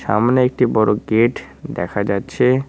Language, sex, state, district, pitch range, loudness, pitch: Bengali, male, West Bengal, Cooch Behar, 100-125 Hz, -17 LUFS, 110 Hz